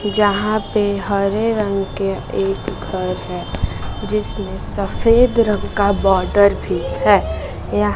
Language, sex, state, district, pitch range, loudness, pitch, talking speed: Hindi, female, Bihar, West Champaran, 195-210 Hz, -18 LUFS, 200 Hz, 115 wpm